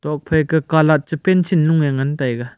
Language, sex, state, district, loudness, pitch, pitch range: Wancho, male, Arunachal Pradesh, Longding, -17 LUFS, 155 Hz, 140-160 Hz